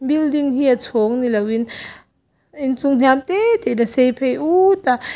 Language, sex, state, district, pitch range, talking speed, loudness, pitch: Mizo, female, Mizoram, Aizawl, 245-295 Hz, 185 wpm, -17 LUFS, 265 Hz